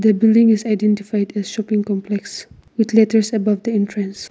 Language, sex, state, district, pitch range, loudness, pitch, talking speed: English, female, Nagaland, Kohima, 205-220 Hz, -17 LUFS, 210 Hz, 165 wpm